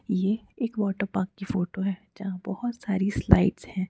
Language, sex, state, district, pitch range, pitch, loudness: Hindi, female, Madhya Pradesh, Bhopal, 190-210 Hz, 195 Hz, -27 LUFS